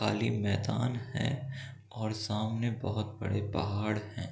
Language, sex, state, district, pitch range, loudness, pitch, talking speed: Hindi, male, Bihar, East Champaran, 105-120 Hz, -34 LUFS, 110 Hz, 140 wpm